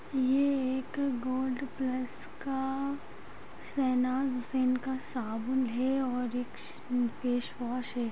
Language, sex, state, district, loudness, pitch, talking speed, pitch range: Hindi, female, Chhattisgarh, Sarguja, -32 LUFS, 255 Hz, 110 wpm, 250-265 Hz